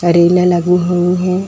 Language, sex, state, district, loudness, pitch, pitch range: Hindi, female, Uttar Pradesh, Etah, -12 LUFS, 180 Hz, 175-180 Hz